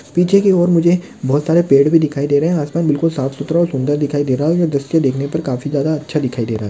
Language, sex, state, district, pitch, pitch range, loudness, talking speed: Hindi, male, Maharashtra, Chandrapur, 145 Hz, 140-170 Hz, -16 LUFS, 285 wpm